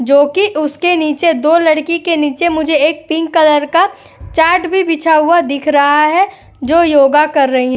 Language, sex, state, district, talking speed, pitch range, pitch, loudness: Hindi, female, Uttar Pradesh, Etah, 195 wpm, 295-340 Hz, 315 Hz, -12 LUFS